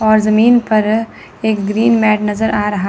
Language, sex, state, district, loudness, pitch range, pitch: Hindi, female, Chandigarh, Chandigarh, -13 LUFS, 210-220 Hz, 215 Hz